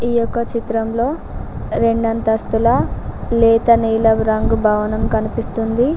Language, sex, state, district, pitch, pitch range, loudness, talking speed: Telugu, female, Telangana, Mahabubabad, 225 Hz, 225-235 Hz, -16 LUFS, 100 wpm